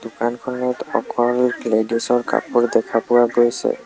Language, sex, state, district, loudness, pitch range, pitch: Assamese, male, Assam, Sonitpur, -19 LUFS, 115-120 Hz, 120 Hz